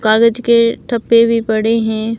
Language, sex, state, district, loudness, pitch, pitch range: Hindi, female, Rajasthan, Barmer, -13 LUFS, 230 Hz, 220-230 Hz